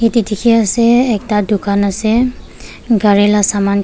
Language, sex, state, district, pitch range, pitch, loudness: Nagamese, female, Nagaland, Kohima, 205-230 Hz, 215 Hz, -13 LUFS